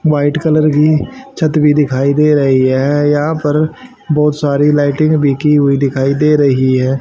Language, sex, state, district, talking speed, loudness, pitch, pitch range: Hindi, male, Haryana, Rohtak, 180 wpm, -12 LUFS, 150 Hz, 140-155 Hz